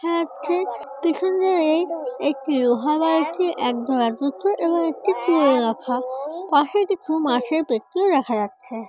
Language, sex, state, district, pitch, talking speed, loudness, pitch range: Bengali, female, West Bengal, Jhargram, 310 Hz, 135 wpm, -21 LUFS, 255-345 Hz